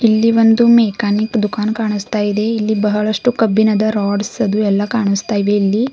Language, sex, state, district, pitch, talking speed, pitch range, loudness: Kannada, female, Karnataka, Bidar, 215 Hz, 150 wpm, 205-225 Hz, -15 LUFS